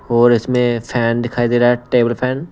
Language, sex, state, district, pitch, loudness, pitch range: Hindi, male, Punjab, Pathankot, 120 Hz, -16 LUFS, 120-125 Hz